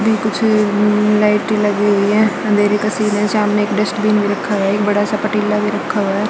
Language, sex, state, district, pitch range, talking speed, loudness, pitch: Hindi, female, Chhattisgarh, Raipur, 205-210 Hz, 240 wpm, -15 LUFS, 210 Hz